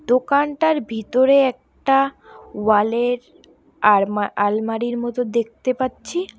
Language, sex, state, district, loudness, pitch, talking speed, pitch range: Bengali, female, West Bengal, Alipurduar, -19 LUFS, 245 Hz, 105 wpm, 220-270 Hz